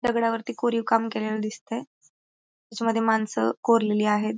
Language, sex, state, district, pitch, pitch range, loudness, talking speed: Marathi, female, Maharashtra, Pune, 225 Hz, 215-230 Hz, -25 LUFS, 125 wpm